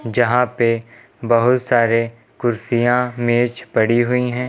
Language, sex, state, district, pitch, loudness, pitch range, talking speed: Hindi, male, Uttar Pradesh, Lucknow, 120 Hz, -18 LUFS, 115-125 Hz, 120 wpm